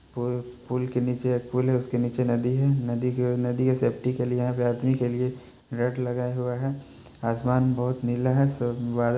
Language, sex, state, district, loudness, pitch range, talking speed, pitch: Hindi, male, Bihar, Muzaffarpur, -26 LUFS, 120-125 Hz, 205 wpm, 125 Hz